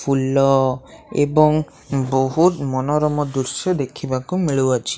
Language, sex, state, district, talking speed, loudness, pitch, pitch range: Odia, male, Odisha, Khordha, 95 wpm, -19 LUFS, 135 Hz, 130-150 Hz